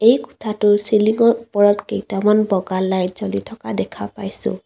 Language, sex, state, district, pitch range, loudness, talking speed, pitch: Assamese, female, Assam, Kamrup Metropolitan, 190-215 Hz, -18 LUFS, 140 wpm, 205 Hz